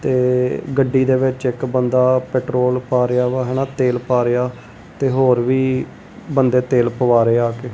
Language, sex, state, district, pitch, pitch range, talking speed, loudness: Punjabi, male, Punjab, Kapurthala, 125 Hz, 125-130 Hz, 185 wpm, -17 LUFS